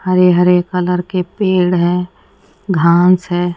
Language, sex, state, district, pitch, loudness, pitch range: Hindi, female, Odisha, Nuapada, 180 Hz, -13 LUFS, 175-180 Hz